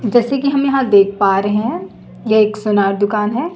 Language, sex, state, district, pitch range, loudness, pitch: Hindi, female, Chhattisgarh, Raipur, 205-270 Hz, -15 LUFS, 215 Hz